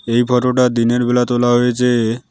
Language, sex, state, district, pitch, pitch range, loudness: Bengali, male, West Bengal, Alipurduar, 120 Hz, 120-125 Hz, -15 LUFS